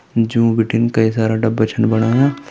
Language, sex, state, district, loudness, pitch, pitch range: Hindi, male, Uttarakhand, Tehri Garhwal, -16 LUFS, 115 Hz, 110-115 Hz